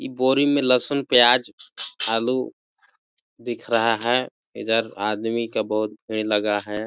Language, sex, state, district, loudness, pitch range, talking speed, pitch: Hindi, male, Chhattisgarh, Balrampur, -21 LUFS, 110-125 Hz, 140 wpm, 115 Hz